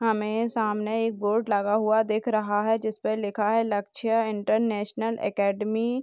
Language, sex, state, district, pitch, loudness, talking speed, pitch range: Hindi, male, Bihar, Purnia, 220 Hz, -26 LUFS, 160 wpm, 210-225 Hz